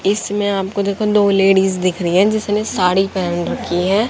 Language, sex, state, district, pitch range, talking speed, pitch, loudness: Hindi, female, Haryana, Jhajjar, 185-205 Hz, 190 wpm, 195 Hz, -16 LUFS